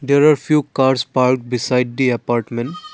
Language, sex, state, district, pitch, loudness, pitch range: English, male, Assam, Kamrup Metropolitan, 130 Hz, -17 LUFS, 125-140 Hz